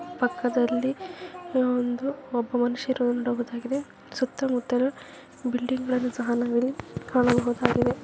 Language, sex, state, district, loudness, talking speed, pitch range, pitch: Kannada, female, Karnataka, Dharwad, -26 LUFS, 95 wpm, 245-265 Hz, 250 Hz